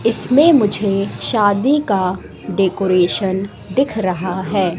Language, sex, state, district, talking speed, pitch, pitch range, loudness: Hindi, female, Madhya Pradesh, Katni, 100 wpm, 195 Hz, 185-225 Hz, -16 LUFS